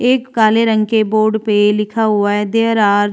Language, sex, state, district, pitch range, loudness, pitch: Hindi, female, Uttar Pradesh, Hamirpur, 210-225 Hz, -14 LUFS, 215 Hz